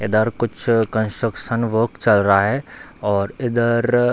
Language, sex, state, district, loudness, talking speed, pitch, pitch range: Hindi, male, Bihar, Darbhanga, -19 LUFS, 145 wpm, 115 Hz, 105-120 Hz